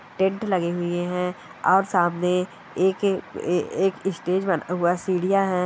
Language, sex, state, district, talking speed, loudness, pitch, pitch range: Hindi, male, Bihar, Kishanganj, 150 wpm, -24 LUFS, 180 Hz, 180-190 Hz